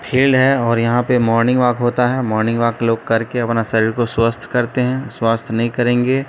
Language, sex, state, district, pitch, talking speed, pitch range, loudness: Hindi, male, Bihar, Katihar, 120 Hz, 210 wpm, 115-125 Hz, -16 LUFS